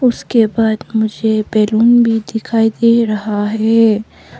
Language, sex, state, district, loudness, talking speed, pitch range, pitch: Hindi, female, Arunachal Pradesh, Papum Pare, -14 LUFS, 120 wpm, 215-230 Hz, 225 Hz